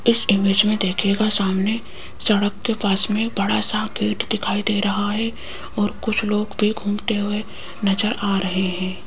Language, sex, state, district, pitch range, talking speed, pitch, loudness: Hindi, female, Rajasthan, Jaipur, 200-215 Hz, 170 wpm, 210 Hz, -20 LUFS